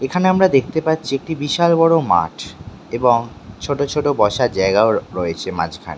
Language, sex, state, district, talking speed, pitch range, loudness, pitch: Bengali, male, West Bengal, Dakshin Dinajpur, 150 wpm, 105-160 Hz, -17 LUFS, 135 Hz